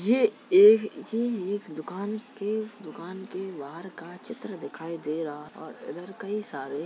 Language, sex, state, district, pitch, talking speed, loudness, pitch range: Hindi, male, Uttar Pradesh, Jalaun, 195 Hz, 175 wpm, -27 LUFS, 170-215 Hz